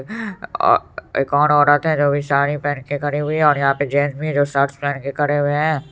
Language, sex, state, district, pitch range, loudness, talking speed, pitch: Hindi, male, Bihar, Supaul, 140-150 Hz, -18 LUFS, 255 wpm, 145 Hz